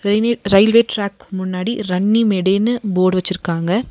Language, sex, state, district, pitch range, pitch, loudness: Tamil, female, Tamil Nadu, Nilgiris, 185-220 Hz, 200 Hz, -17 LUFS